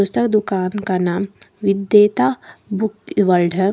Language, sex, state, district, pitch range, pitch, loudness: Hindi, female, Jharkhand, Deoghar, 185-210 Hz, 195 Hz, -18 LUFS